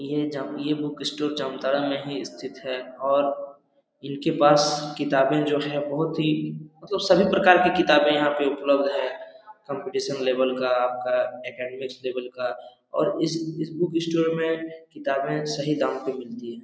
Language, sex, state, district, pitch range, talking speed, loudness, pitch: Hindi, male, Jharkhand, Jamtara, 130-155 Hz, 160 wpm, -24 LUFS, 140 Hz